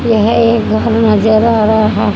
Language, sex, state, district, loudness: Hindi, female, Haryana, Rohtak, -11 LUFS